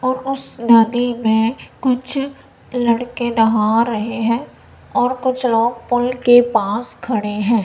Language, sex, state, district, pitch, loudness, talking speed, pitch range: Hindi, female, Punjab, Kapurthala, 235 Hz, -17 LUFS, 135 wpm, 225-250 Hz